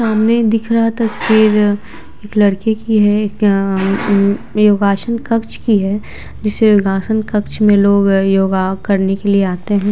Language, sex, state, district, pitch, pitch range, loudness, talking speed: Hindi, female, Bihar, Vaishali, 205 Hz, 200-220 Hz, -14 LUFS, 155 wpm